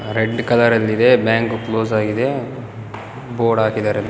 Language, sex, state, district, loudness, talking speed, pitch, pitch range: Kannada, male, Karnataka, Bellary, -17 LUFS, 115 wpm, 115 Hz, 110-120 Hz